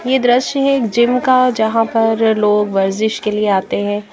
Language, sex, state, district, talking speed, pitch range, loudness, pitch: Hindi, female, Bihar, Patna, 205 wpm, 210-250 Hz, -14 LUFS, 225 Hz